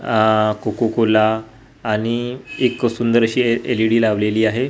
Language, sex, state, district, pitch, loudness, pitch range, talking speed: Marathi, male, Maharashtra, Gondia, 115 Hz, -18 LUFS, 110-120 Hz, 100 wpm